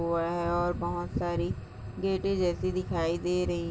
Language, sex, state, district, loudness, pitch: Hindi, female, Chhattisgarh, Balrampur, -30 LUFS, 170 Hz